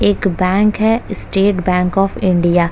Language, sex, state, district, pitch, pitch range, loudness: Hindi, female, Uttar Pradesh, Etah, 190 Hz, 180-200 Hz, -15 LUFS